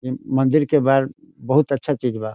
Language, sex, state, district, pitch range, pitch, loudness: Bhojpuri, male, Bihar, Saran, 130-145 Hz, 135 Hz, -19 LUFS